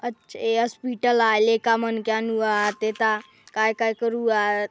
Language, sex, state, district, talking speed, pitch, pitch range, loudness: Halbi, female, Chhattisgarh, Bastar, 155 wpm, 225 Hz, 220-230 Hz, -22 LUFS